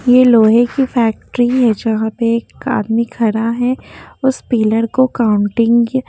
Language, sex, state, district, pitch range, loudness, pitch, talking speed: Hindi, female, Haryana, Jhajjar, 225-250 Hz, -14 LUFS, 235 Hz, 160 wpm